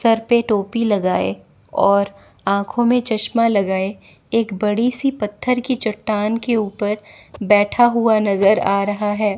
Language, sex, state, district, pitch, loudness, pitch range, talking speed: Hindi, female, Chandigarh, Chandigarh, 210 Hz, -18 LUFS, 205-230 Hz, 145 wpm